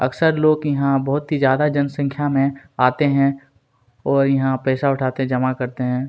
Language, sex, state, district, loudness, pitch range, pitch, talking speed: Hindi, male, Chhattisgarh, Kabirdham, -19 LUFS, 130-140 Hz, 135 Hz, 175 wpm